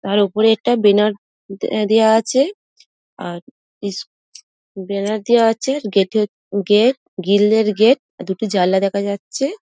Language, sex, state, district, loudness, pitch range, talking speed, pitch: Bengali, female, West Bengal, Dakshin Dinajpur, -17 LUFS, 200-225 Hz, 135 wpm, 210 Hz